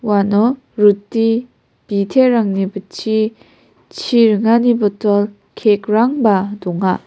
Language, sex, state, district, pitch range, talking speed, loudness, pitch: Garo, female, Meghalaya, West Garo Hills, 200-230 Hz, 75 wpm, -15 LUFS, 210 Hz